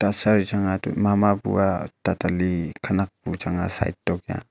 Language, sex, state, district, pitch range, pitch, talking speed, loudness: Wancho, male, Arunachal Pradesh, Longding, 90-100 Hz, 95 Hz, 175 wpm, -22 LUFS